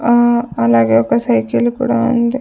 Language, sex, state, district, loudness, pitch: Telugu, female, Andhra Pradesh, Sri Satya Sai, -14 LUFS, 235 Hz